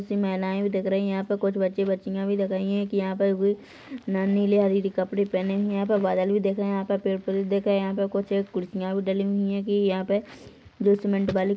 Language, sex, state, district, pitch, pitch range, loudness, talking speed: Hindi, female, Chhattisgarh, Rajnandgaon, 195 Hz, 195-200 Hz, -25 LUFS, 270 wpm